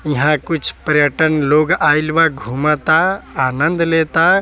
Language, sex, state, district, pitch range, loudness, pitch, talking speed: Bhojpuri, male, Bihar, East Champaran, 145-165 Hz, -15 LUFS, 155 Hz, 120 wpm